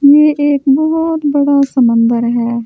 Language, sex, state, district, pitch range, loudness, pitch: Hindi, female, Delhi, New Delhi, 235-295 Hz, -12 LUFS, 280 Hz